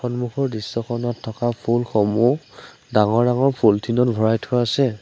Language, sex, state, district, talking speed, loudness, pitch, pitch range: Assamese, male, Assam, Sonitpur, 130 wpm, -20 LUFS, 120 Hz, 110-125 Hz